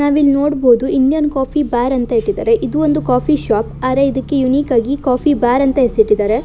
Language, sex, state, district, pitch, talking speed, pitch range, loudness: Kannada, female, Karnataka, Shimoga, 265 Hz, 165 wpm, 245-290 Hz, -14 LUFS